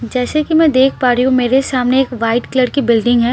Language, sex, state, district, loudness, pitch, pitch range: Hindi, female, Bihar, Patna, -13 LUFS, 255 Hz, 245-265 Hz